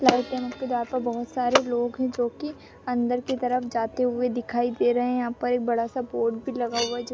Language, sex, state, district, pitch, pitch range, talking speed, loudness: Hindi, female, Bihar, Purnia, 245 Hz, 240-250 Hz, 235 wpm, -26 LUFS